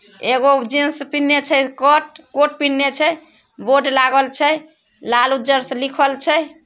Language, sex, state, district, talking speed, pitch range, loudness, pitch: Maithili, female, Bihar, Samastipur, 145 wpm, 270-300 Hz, -16 LUFS, 280 Hz